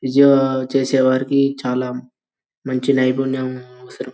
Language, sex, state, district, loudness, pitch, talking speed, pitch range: Telugu, male, Telangana, Karimnagar, -18 LUFS, 130 Hz, 100 wpm, 130-135 Hz